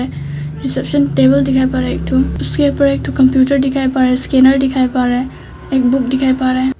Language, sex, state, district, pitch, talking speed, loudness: Hindi, female, Arunachal Pradesh, Papum Pare, 255 Hz, 245 wpm, -14 LUFS